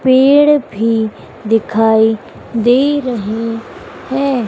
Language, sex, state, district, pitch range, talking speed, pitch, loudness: Hindi, female, Madhya Pradesh, Dhar, 225-265 Hz, 80 wpm, 230 Hz, -14 LUFS